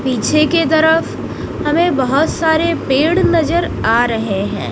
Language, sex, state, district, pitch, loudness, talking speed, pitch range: Hindi, female, Odisha, Nuapada, 310 Hz, -15 LUFS, 140 wpm, 260-330 Hz